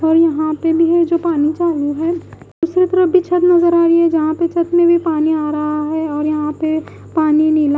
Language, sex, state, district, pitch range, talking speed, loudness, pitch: Hindi, female, Bihar, West Champaran, 310-340 Hz, 245 wpm, -15 LUFS, 325 Hz